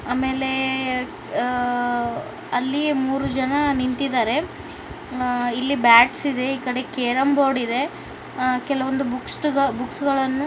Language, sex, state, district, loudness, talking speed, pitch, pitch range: Kannada, male, Karnataka, Bijapur, -21 LUFS, 90 wpm, 260 Hz, 250-275 Hz